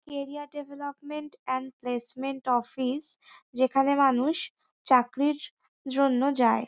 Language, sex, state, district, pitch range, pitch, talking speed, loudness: Bengali, female, West Bengal, North 24 Parganas, 255-290 Hz, 275 Hz, 90 wpm, -28 LUFS